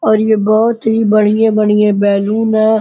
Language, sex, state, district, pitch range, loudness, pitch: Hindi, male, Uttar Pradesh, Gorakhpur, 210-220 Hz, -12 LUFS, 215 Hz